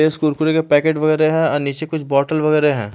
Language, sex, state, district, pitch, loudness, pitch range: Hindi, male, Chandigarh, Chandigarh, 155 Hz, -16 LUFS, 145-155 Hz